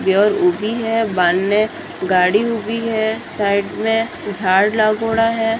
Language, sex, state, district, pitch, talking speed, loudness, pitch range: Marwari, female, Rajasthan, Churu, 215 Hz, 120 wpm, -17 LUFS, 195-225 Hz